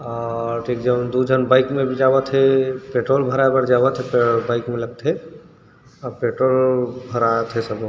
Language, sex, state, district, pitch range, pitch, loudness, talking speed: Chhattisgarhi, male, Chhattisgarh, Rajnandgaon, 120-130 Hz, 125 Hz, -19 LUFS, 175 wpm